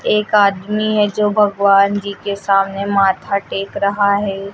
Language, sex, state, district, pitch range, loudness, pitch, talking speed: Hindi, female, Uttar Pradesh, Lucknow, 200-205 Hz, -16 LUFS, 200 Hz, 160 wpm